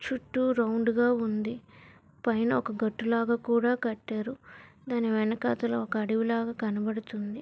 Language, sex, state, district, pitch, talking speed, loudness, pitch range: Telugu, female, Andhra Pradesh, Visakhapatnam, 230 Hz, 120 wpm, -29 LUFS, 220-235 Hz